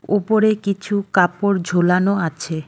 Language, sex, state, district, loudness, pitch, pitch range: Bengali, female, West Bengal, Cooch Behar, -18 LUFS, 195 Hz, 175-205 Hz